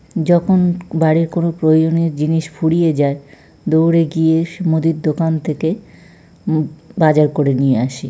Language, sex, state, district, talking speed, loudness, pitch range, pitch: Bengali, male, West Bengal, North 24 Parganas, 140 wpm, -16 LUFS, 155-165 Hz, 160 Hz